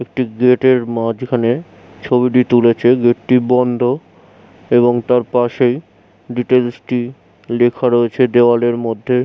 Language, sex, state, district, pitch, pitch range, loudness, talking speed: Bengali, male, West Bengal, Jhargram, 120 Hz, 120-125 Hz, -15 LUFS, 115 wpm